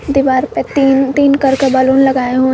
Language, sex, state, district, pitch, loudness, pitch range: Hindi, female, Jharkhand, Garhwa, 270 Hz, -12 LUFS, 260-275 Hz